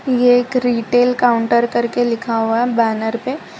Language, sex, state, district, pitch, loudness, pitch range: Hindi, female, Gujarat, Valsad, 240 Hz, -16 LUFS, 230-245 Hz